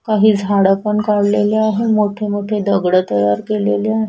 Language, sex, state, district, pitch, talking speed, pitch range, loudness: Marathi, female, Maharashtra, Washim, 205 Hz, 160 wpm, 195-215 Hz, -15 LUFS